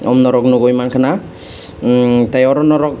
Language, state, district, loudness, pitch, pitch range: Kokborok, Tripura, West Tripura, -13 LUFS, 125 Hz, 125-130 Hz